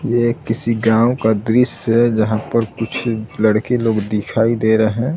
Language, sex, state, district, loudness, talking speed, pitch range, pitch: Hindi, male, Bihar, Saran, -16 LUFS, 175 wpm, 110-120 Hz, 115 Hz